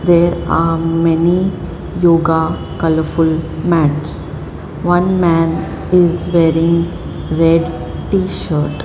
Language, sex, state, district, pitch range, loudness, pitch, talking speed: English, male, Maharashtra, Mumbai Suburban, 160-175 Hz, -15 LUFS, 165 Hz, 80 wpm